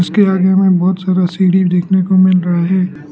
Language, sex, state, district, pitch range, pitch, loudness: Hindi, male, Arunachal Pradesh, Lower Dibang Valley, 180-190 Hz, 185 Hz, -12 LUFS